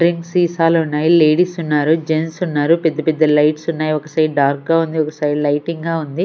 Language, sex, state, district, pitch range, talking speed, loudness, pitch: Telugu, female, Andhra Pradesh, Sri Satya Sai, 150-165 Hz, 200 wpm, -16 LUFS, 160 Hz